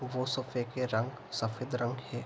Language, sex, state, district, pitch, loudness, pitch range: Hindi, male, Bihar, Araria, 125 Hz, -35 LUFS, 120-130 Hz